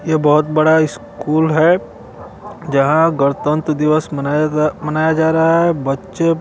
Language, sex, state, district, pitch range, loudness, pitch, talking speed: Hindi, male, Bihar, Kaimur, 150-160 Hz, -15 LUFS, 155 Hz, 140 wpm